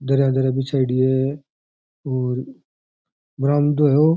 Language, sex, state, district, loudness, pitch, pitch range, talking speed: Rajasthani, male, Rajasthan, Churu, -20 LUFS, 135 Hz, 130-140 Hz, 115 wpm